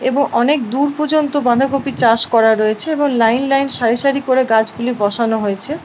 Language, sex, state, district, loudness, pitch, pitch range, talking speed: Bengali, female, West Bengal, Paschim Medinipur, -15 LUFS, 255 Hz, 230-280 Hz, 175 wpm